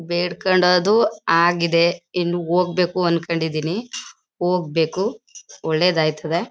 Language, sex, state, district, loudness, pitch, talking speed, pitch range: Kannada, female, Karnataka, Mysore, -19 LUFS, 175 Hz, 65 wpm, 170-180 Hz